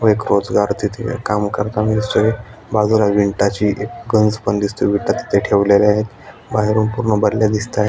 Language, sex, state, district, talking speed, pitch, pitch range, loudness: Marathi, male, Maharashtra, Aurangabad, 165 wpm, 105 Hz, 105-110 Hz, -17 LUFS